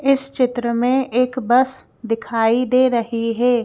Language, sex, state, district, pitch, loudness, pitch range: Hindi, female, Madhya Pradesh, Bhopal, 245 Hz, -17 LUFS, 230-255 Hz